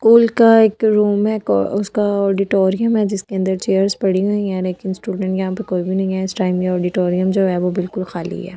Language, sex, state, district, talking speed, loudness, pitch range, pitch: Hindi, female, Delhi, New Delhi, 225 wpm, -17 LUFS, 185-210 Hz, 190 Hz